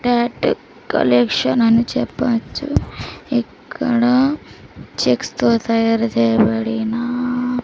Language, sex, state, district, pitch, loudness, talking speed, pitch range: Telugu, female, Andhra Pradesh, Sri Satya Sai, 235 Hz, -18 LUFS, 80 wpm, 175-245 Hz